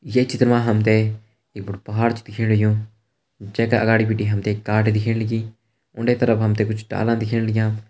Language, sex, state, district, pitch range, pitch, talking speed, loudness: Hindi, male, Uttarakhand, Uttarkashi, 110-115 Hz, 110 Hz, 220 wpm, -20 LUFS